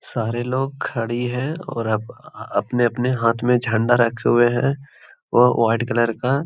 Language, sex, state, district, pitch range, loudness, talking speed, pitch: Hindi, male, Bihar, Gaya, 115-125 Hz, -20 LUFS, 150 wpm, 120 Hz